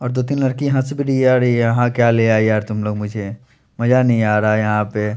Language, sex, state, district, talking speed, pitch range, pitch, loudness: Hindi, male, Chandigarh, Chandigarh, 255 wpm, 105-130 Hz, 115 Hz, -17 LUFS